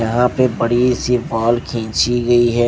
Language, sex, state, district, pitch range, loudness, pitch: Hindi, male, Maharashtra, Gondia, 115-125 Hz, -16 LUFS, 120 Hz